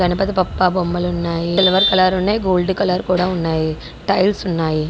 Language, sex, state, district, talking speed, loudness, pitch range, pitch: Telugu, female, Andhra Pradesh, Guntur, 160 wpm, -17 LUFS, 170-190 Hz, 180 Hz